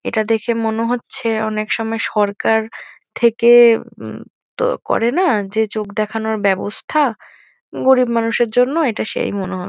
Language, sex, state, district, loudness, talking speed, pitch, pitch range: Bengali, female, West Bengal, Kolkata, -17 LUFS, 140 wpm, 225 Hz, 215-235 Hz